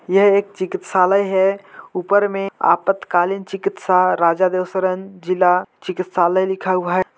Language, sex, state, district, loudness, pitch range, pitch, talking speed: Hindi, male, Chhattisgarh, Jashpur, -18 LUFS, 185-195 Hz, 185 Hz, 140 wpm